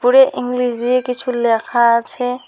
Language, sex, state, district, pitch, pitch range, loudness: Bengali, female, West Bengal, Alipurduar, 250 Hz, 240-250 Hz, -16 LUFS